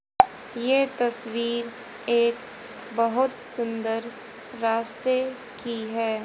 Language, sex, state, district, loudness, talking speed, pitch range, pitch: Hindi, female, Haryana, Charkhi Dadri, -26 LUFS, 75 wpm, 230-250 Hz, 235 Hz